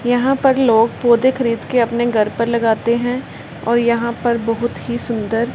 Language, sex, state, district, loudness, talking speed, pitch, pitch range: Hindi, female, Punjab, Pathankot, -17 LUFS, 185 wpm, 235 Hz, 230-245 Hz